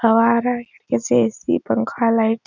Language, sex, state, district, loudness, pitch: Hindi, female, Uttar Pradesh, Etah, -19 LUFS, 225 Hz